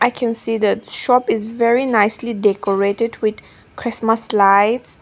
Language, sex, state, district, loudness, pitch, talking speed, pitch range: English, female, Nagaland, Dimapur, -17 LUFS, 225 Hz, 145 wpm, 205-235 Hz